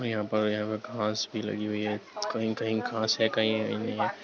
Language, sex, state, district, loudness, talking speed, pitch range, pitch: Hindi, male, Bihar, Lakhisarai, -30 LUFS, 240 wpm, 105-110 Hz, 110 Hz